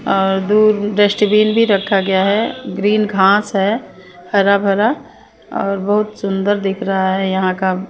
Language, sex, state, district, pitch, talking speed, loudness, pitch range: Hindi, female, Chandigarh, Chandigarh, 200 Hz, 160 wpm, -15 LUFS, 195-210 Hz